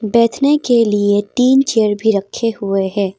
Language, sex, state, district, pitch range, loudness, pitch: Hindi, female, Arunachal Pradesh, Papum Pare, 205-240 Hz, -15 LUFS, 220 Hz